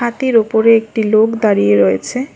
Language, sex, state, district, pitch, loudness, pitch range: Bengali, female, West Bengal, Alipurduar, 225 Hz, -13 LUFS, 215-235 Hz